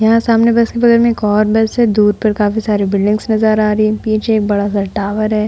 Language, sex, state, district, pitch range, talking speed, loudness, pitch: Hindi, female, Uttar Pradesh, Hamirpur, 210-225 Hz, 275 wpm, -13 LUFS, 215 Hz